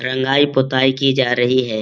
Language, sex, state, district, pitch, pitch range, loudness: Hindi, male, Bihar, Jamui, 130 Hz, 125-135 Hz, -16 LUFS